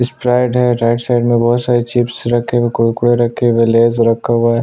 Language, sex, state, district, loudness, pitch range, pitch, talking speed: Hindi, male, Chhattisgarh, Sukma, -13 LUFS, 115-120 Hz, 120 Hz, 235 wpm